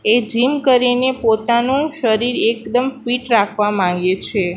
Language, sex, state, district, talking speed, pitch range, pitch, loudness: Gujarati, female, Gujarat, Gandhinagar, 130 wpm, 215-250 Hz, 235 Hz, -16 LUFS